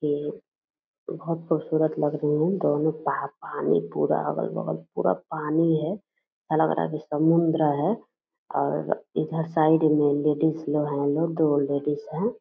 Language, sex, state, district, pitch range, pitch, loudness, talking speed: Hindi, female, Bihar, Purnia, 150-160 Hz, 155 Hz, -25 LUFS, 145 wpm